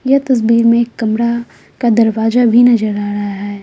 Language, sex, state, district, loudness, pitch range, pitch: Hindi, female, Bihar, Patna, -13 LUFS, 215-240 Hz, 230 Hz